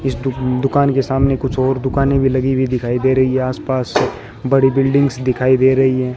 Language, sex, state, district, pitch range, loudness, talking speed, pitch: Hindi, male, Rajasthan, Bikaner, 130-135 Hz, -16 LUFS, 215 wpm, 130 Hz